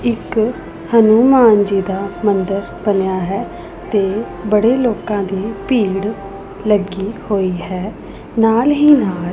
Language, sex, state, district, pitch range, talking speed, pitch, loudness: Punjabi, female, Punjab, Pathankot, 195-225 Hz, 120 wpm, 205 Hz, -15 LUFS